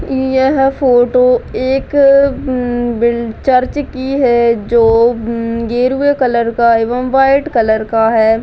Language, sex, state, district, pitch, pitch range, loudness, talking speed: Hindi, female, Bihar, Muzaffarpur, 245 Hz, 235-270 Hz, -12 LUFS, 130 wpm